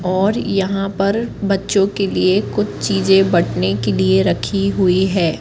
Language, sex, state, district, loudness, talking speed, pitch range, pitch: Hindi, female, Madhya Pradesh, Katni, -16 LUFS, 155 wpm, 185-195 Hz, 195 Hz